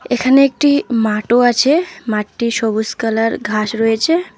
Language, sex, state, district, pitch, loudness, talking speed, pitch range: Bengali, female, West Bengal, Alipurduar, 235 Hz, -15 LUFS, 125 wpm, 220-270 Hz